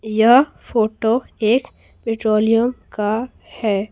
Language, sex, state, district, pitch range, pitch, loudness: Hindi, female, Bihar, Patna, 215-240 Hz, 225 Hz, -18 LUFS